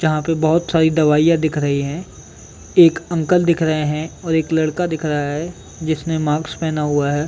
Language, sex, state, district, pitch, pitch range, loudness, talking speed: Hindi, male, Chhattisgarh, Bilaspur, 160 Hz, 150-165 Hz, -18 LUFS, 200 wpm